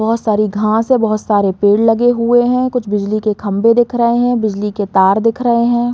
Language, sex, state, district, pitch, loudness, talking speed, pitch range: Hindi, female, Uttar Pradesh, Muzaffarnagar, 225 Hz, -13 LUFS, 230 wpm, 210-240 Hz